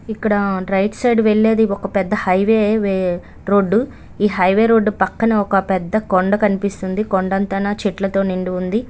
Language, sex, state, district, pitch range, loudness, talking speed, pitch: Telugu, female, Andhra Pradesh, Chittoor, 190-215 Hz, -17 LUFS, 140 wpm, 200 Hz